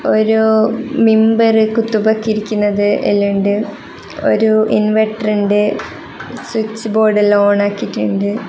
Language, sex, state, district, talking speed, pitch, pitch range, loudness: Malayalam, female, Kerala, Kasaragod, 85 wpm, 215 Hz, 205-220 Hz, -14 LUFS